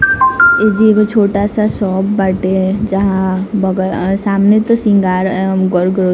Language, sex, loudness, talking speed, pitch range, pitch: Bhojpuri, female, -12 LUFS, 125 wpm, 190-215 Hz, 195 Hz